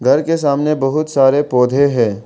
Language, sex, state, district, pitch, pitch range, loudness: Hindi, male, Arunachal Pradesh, Lower Dibang Valley, 140 Hz, 125-150 Hz, -14 LUFS